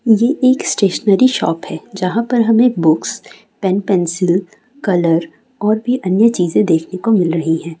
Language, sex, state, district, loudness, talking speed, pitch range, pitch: Hindi, female, Bihar, Saran, -15 LUFS, 160 wpm, 175-230 Hz, 200 Hz